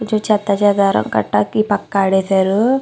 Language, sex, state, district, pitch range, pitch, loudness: Telugu, female, Andhra Pradesh, Chittoor, 195-215 Hz, 205 Hz, -16 LUFS